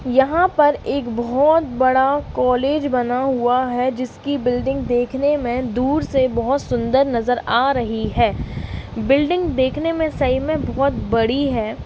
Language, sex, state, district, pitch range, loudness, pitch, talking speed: Hindi, female, Uttar Pradesh, Varanasi, 245-285 Hz, -19 LUFS, 265 Hz, 145 wpm